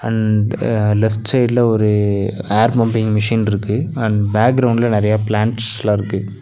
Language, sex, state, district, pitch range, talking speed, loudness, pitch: Tamil, male, Tamil Nadu, Nilgiris, 105-115 Hz, 120 wpm, -16 LUFS, 110 Hz